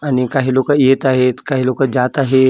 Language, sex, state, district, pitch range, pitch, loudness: Marathi, male, Maharashtra, Gondia, 130-135 Hz, 130 Hz, -14 LUFS